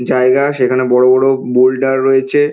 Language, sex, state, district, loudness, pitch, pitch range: Bengali, male, West Bengal, North 24 Parganas, -12 LUFS, 130 Hz, 125-135 Hz